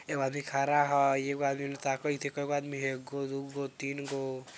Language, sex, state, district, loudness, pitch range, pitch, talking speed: Bajjika, female, Bihar, Vaishali, -32 LUFS, 135-140 Hz, 140 Hz, 195 wpm